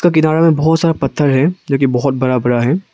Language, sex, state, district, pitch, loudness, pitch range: Hindi, male, Arunachal Pradesh, Longding, 145 Hz, -14 LUFS, 130-165 Hz